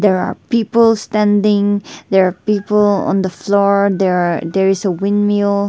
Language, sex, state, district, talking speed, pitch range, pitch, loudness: English, female, Nagaland, Dimapur, 180 wpm, 190-210 Hz, 200 Hz, -15 LUFS